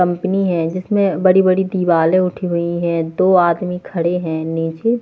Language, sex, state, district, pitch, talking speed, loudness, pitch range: Hindi, female, Haryana, Jhajjar, 180 Hz, 155 wpm, -16 LUFS, 170-185 Hz